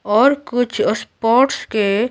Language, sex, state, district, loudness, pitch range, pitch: Hindi, female, Bihar, Patna, -17 LUFS, 215-250 Hz, 230 Hz